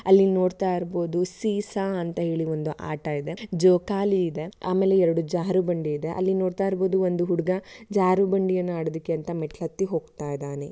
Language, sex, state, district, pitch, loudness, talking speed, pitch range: Kannada, female, Karnataka, Shimoga, 180 Hz, -25 LUFS, 150 wpm, 165-190 Hz